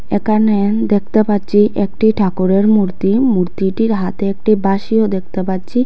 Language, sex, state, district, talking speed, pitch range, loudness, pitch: Bengali, female, Assam, Hailakandi, 125 wpm, 195-220 Hz, -15 LUFS, 205 Hz